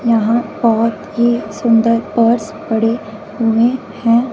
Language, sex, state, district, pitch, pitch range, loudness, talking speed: Hindi, female, Punjab, Fazilka, 230 Hz, 225-235 Hz, -15 LUFS, 110 wpm